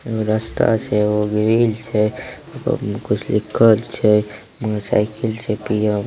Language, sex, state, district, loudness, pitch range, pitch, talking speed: Maithili, male, Bihar, Samastipur, -18 LUFS, 105-115 Hz, 110 Hz, 130 wpm